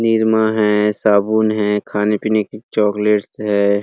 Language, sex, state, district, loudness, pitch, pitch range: Hindi, male, Chhattisgarh, Rajnandgaon, -16 LUFS, 105 Hz, 105-110 Hz